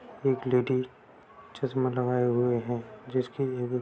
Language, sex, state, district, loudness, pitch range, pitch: Hindi, male, Bihar, Sitamarhi, -29 LUFS, 125-130 Hz, 125 Hz